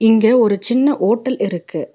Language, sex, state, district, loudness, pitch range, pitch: Tamil, female, Tamil Nadu, Nilgiris, -15 LUFS, 205-250 Hz, 225 Hz